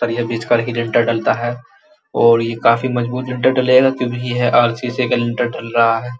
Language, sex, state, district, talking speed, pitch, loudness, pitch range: Hindi, male, Uttar Pradesh, Muzaffarnagar, 205 wpm, 120 Hz, -16 LUFS, 115-125 Hz